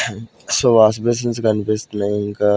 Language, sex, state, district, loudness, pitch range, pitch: Telugu, male, Andhra Pradesh, Sri Satya Sai, -17 LUFS, 105-115 Hz, 110 Hz